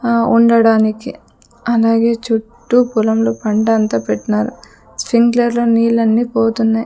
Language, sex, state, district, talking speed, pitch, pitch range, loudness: Telugu, female, Andhra Pradesh, Sri Satya Sai, 105 wpm, 230 Hz, 220-235 Hz, -14 LUFS